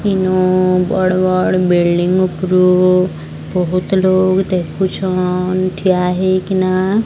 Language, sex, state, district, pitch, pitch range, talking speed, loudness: Odia, male, Odisha, Sambalpur, 185 Hz, 180-185 Hz, 85 wpm, -14 LUFS